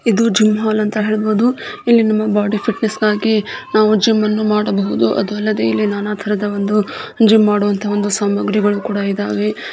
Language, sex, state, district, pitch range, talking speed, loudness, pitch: Kannada, female, Karnataka, Gulbarga, 205-215 Hz, 150 wpm, -16 LUFS, 210 Hz